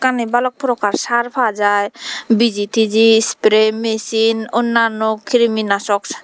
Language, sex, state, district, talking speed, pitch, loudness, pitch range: Chakma, female, Tripura, Dhalai, 125 wpm, 225 Hz, -15 LUFS, 215-235 Hz